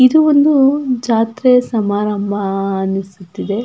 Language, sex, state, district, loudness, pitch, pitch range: Kannada, female, Karnataka, Dakshina Kannada, -14 LUFS, 225 Hz, 200-255 Hz